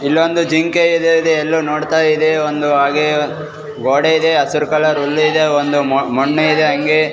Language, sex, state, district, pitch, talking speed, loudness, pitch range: Kannada, male, Karnataka, Raichur, 155 Hz, 160 wpm, -14 LUFS, 145-160 Hz